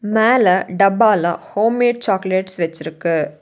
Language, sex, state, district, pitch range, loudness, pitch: Tamil, female, Tamil Nadu, Nilgiris, 170-220 Hz, -16 LUFS, 190 Hz